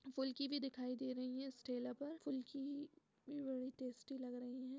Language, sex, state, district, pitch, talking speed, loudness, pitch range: Hindi, female, Uttar Pradesh, Etah, 265 Hz, 200 wpm, -47 LUFS, 255-280 Hz